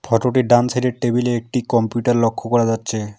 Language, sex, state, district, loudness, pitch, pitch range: Bengali, male, West Bengal, Alipurduar, -18 LUFS, 120 Hz, 115-125 Hz